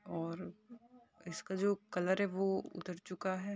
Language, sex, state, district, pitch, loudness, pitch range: Hindi, female, Rajasthan, Churu, 190 Hz, -38 LUFS, 180-200 Hz